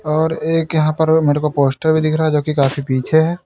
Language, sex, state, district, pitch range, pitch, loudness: Hindi, male, Uttar Pradesh, Lalitpur, 145-160 Hz, 155 Hz, -16 LUFS